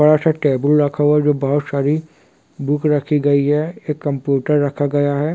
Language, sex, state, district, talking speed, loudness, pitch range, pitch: Hindi, male, Bihar, Kishanganj, 200 wpm, -17 LUFS, 145-150 Hz, 145 Hz